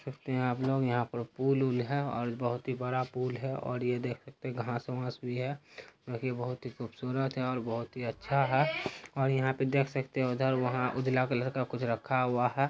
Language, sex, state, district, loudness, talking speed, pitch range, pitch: Hindi, male, Bihar, Araria, -33 LUFS, 230 wpm, 125-135 Hz, 130 Hz